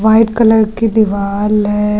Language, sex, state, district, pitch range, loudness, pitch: Hindi, female, Uttar Pradesh, Lucknow, 210-220 Hz, -12 LUFS, 215 Hz